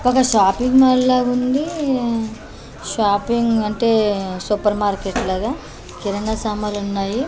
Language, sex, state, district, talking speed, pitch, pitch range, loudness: Telugu, female, Andhra Pradesh, Manyam, 90 wpm, 220 Hz, 205-250 Hz, -18 LUFS